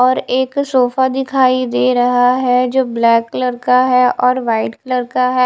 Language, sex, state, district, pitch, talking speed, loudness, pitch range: Hindi, female, Bihar, West Champaran, 250 Hz, 185 wpm, -14 LUFS, 250-255 Hz